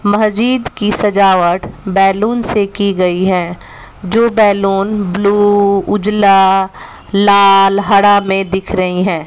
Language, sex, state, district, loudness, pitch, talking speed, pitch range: Hindi, female, Bihar, West Champaran, -12 LUFS, 200 Hz, 115 wpm, 195-210 Hz